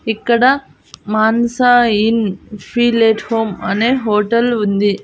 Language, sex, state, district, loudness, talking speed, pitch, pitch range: Telugu, female, Andhra Pradesh, Annamaya, -14 LUFS, 105 wpm, 225 Hz, 210-235 Hz